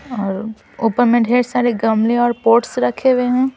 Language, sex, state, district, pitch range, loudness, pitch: Hindi, female, Bihar, Patna, 225-245 Hz, -16 LUFS, 240 Hz